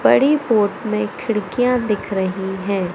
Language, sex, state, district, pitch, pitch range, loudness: Hindi, male, Madhya Pradesh, Katni, 210 Hz, 190-235 Hz, -19 LUFS